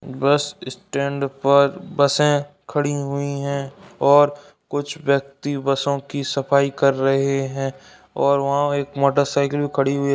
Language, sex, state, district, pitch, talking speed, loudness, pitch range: Hindi, male, Uttar Pradesh, Ghazipur, 140 Hz, 135 wpm, -20 LUFS, 140-145 Hz